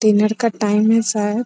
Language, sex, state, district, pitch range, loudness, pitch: Hindi, female, Bihar, Araria, 210-225 Hz, -17 LUFS, 215 Hz